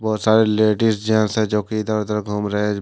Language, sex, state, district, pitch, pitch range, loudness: Hindi, male, Jharkhand, Deoghar, 110 Hz, 105-110 Hz, -19 LUFS